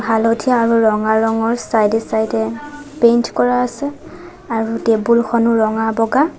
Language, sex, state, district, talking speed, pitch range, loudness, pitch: Assamese, female, Assam, Sonitpur, 140 wpm, 225-245 Hz, -16 LUFS, 230 Hz